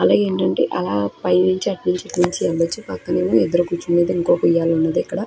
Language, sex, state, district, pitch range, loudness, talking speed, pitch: Telugu, female, Andhra Pradesh, Krishna, 165-180 Hz, -19 LUFS, 170 wpm, 170 Hz